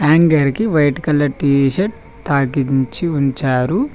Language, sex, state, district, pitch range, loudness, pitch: Telugu, male, Telangana, Mahabubabad, 135-165 Hz, -16 LUFS, 145 Hz